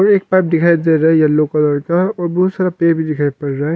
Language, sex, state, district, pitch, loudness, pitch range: Hindi, male, Arunachal Pradesh, Longding, 165 Hz, -14 LUFS, 150-180 Hz